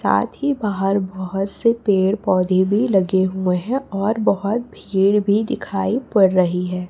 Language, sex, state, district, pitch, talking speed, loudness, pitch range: Hindi, female, Chhattisgarh, Raipur, 195 Hz, 165 wpm, -19 LUFS, 190-215 Hz